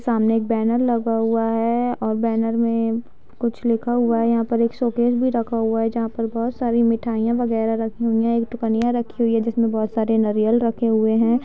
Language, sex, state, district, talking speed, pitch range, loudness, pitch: Hindi, female, Bihar, Gaya, 215 wpm, 225-235 Hz, -20 LUFS, 230 Hz